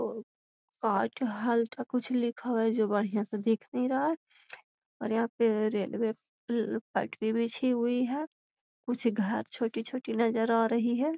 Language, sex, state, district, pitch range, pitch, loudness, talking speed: Magahi, female, Bihar, Gaya, 225-250 Hz, 230 Hz, -31 LUFS, 135 wpm